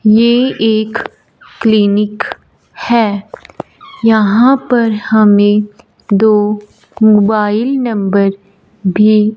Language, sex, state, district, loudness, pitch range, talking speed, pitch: Hindi, female, Punjab, Fazilka, -11 LUFS, 210-225 Hz, 70 wpm, 215 Hz